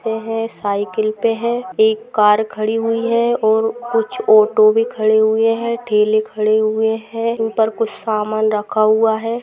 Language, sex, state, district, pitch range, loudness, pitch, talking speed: Hindi, female, Jharkhand, Sahebganj, 215-230 Hz, -16 LUFS, 225 Hz, 180 wpm